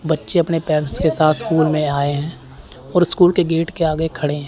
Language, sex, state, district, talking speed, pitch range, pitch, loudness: Hindi, male, Chandigarh, Chandigarh, 240 wpm, 150-165 Hz, 160 Hz, -17 LUFS